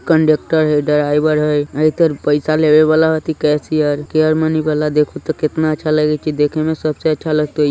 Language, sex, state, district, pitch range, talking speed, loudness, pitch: Hindi, female, Bihar, Sitamarhi, 150-155 Hz, 180 wpm, -15 LUFS, 155 Hz